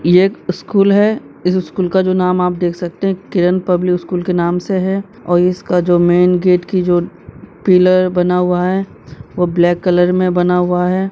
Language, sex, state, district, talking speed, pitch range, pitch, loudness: Hindi, male, Bihar, Madhepura, 205 wpm, 180-185 Hz, 180 Hz, -14 LUFS